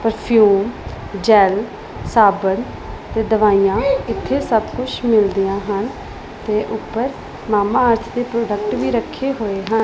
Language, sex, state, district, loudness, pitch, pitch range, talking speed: Punjabi, female, Punjab, Pathankot, -17 LUFS, 215 Hz, 200-230 Hz, 120 wpm